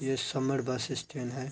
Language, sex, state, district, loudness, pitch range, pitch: Hindi, female, Bihar, Araria, -33 LUFS, 130-135 Hz, 135 Hz